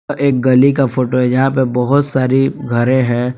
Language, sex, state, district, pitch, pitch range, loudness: Hindi, male, Jharkhand, Palamu, 130 Hz, 125-135 Hz, -14 LUFS